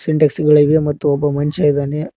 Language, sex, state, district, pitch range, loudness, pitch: Kannada, male, Karnataka, Koppal, 145-155 Hz, -14 LUFS, 150 Hz